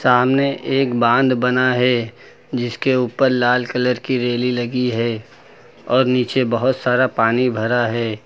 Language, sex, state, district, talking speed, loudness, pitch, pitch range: Hindi, male, Uttar Pradesh, Lucknow, 145 wpm, -18 LUFS, 125 Hz, 120-130 Hz